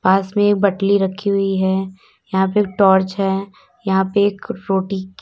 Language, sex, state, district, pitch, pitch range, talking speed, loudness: Hindi, female, Uttar Pradesh, Lalitpur, 195 Hz, 190-200 Hz, 175 wpm, -18 LUFS